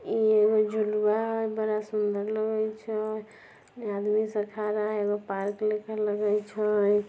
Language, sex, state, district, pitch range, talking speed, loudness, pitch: Maithili, female, Bihar, Samastipur, 210-215 Hz, 150 wpm, -28 LUFS, 215 Hz